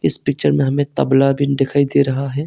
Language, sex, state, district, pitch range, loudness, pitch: Hindi, male, Arunachal Pradesh, Longding, 135-140 Hz, -16 LUFS, 140 Hz